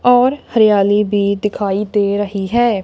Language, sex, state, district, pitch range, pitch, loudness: Hindi, female, Punjab, Kapurthala, 200-230 Hz, 205 Hz, -15 LUFS